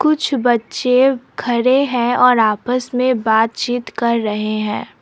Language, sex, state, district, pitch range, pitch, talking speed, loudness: Hindi, female, Assam, Sonitpur, 225-255 Hz, 245 Hz, 130 wpm, -16 LUFS